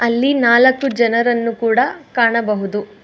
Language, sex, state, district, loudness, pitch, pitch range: Kannada, female, Karnataka, Bangalore, -15 LUFS, 235 Hz, 230-255 Hz